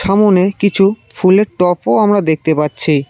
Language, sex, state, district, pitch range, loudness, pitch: Bengali, male, West Bengal, Cooch Behar, 160-200 Hz, -13 LUFS, 190 Hz